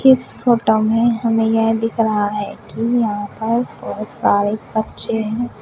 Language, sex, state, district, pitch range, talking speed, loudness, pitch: Hindi, female, Uttar Pradesh, Shamli, 215-230 Hz, 160 wpm, -18 LUFS, 225 Hz